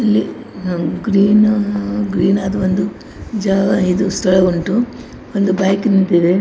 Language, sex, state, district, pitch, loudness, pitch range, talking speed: Kannada, female, Karnataka, Dakshina Kannada, 195 Hz, -16 LUFS, 185-205 Hz, 130 wpm